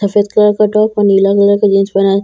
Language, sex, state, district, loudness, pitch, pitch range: Hindi, female, Bihar, Katihar, -11 LUFS, 200 Hz, 195-210 Hz